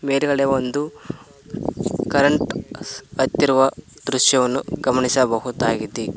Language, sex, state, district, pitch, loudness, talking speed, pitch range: Kannada, male, Karnataka, Koppal, 130 Hz, -20 LUFS, 60 wpm, 125-135 Hz